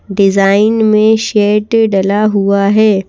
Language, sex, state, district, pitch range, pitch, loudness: Hindi, female, Madhya Pradesh, Bhopal, 200-215 Hz, 210 Hz, -10 LUFS